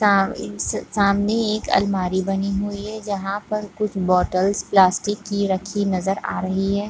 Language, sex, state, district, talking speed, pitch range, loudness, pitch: Hindi, female, Jharkhand, Sahebganj, 155 wpm, 190-205 Hz, -21 LUFS, 200 Hz